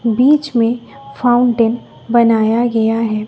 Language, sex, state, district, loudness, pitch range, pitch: Hindi, female, Bihar, West Champaran, -14 LUFS, 225-240 Hz, 230 Hz